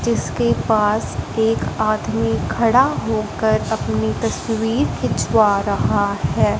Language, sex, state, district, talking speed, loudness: Hindi, female, Punjab, Fazilka, 100 wpm, -19 LUFS